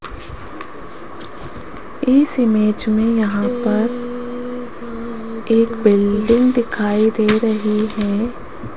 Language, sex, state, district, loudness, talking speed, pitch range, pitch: Hindi, female, Rajasthan, Jaipur, -17 LUFS, 75 wpm, 215-240 Hz, 225 Hz